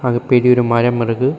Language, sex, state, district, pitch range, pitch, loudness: Tamil, male, Tamil Nadu, Kanyakumari, 120-125 Hz, 120 Hz, -14 LUFS